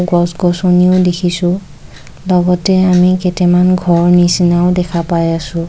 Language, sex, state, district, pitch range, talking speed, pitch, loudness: Assamese, female, Assam, Kamrup Metropolitan, 175-180 Hz, 115 wpm, 180 Hz, -12 LUFS